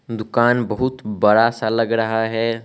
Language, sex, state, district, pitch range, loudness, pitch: Hindi, male, Arunachal Pradesh, Lower Dibang Valley, 110-120 Hz, -18 LUFS, 115 Hz